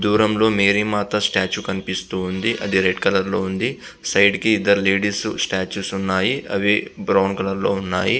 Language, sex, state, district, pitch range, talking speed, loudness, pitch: Telugu, male, Andhra Pradesh, Visakhapatnam, 95-105 Hz, 145 wpm, -19 LUFS, 100 Hz